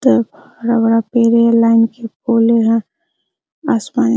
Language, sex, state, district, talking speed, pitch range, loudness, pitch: Hindi, female, Bihar, Araria, 160 wpm, 230-235 Hz, -14 LUFS, 230 Hz